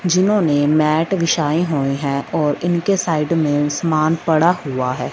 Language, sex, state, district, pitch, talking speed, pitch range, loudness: Hindi, female, Punjab, Fazilka, 155 Hz, 150 wpm, 145-170 Hz, -17 LUFS